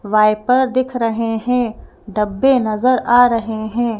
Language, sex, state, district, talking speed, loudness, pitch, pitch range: Hindi, female, Madhya Pradesh, Bhopal, 135 wpm, -16 LUFS, 230 Hz, 215-250 Hz